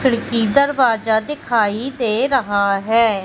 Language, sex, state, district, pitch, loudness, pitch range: Hindi, female, Madhya Pradesh, Umaria, 230 Hz, -17 LUFS, 220-265 Hz